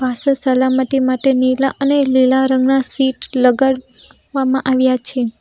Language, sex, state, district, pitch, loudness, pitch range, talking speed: Gujarati, female, Gujarat, Valsad, 260 Hz, -15 LUFS, 255-270 Hz, 120 wpm